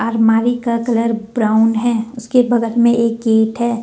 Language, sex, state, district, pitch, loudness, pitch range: Hindi, female, Jharkhand, Deoghar, 230 Hz, -15 LUFS, 225-235 Hz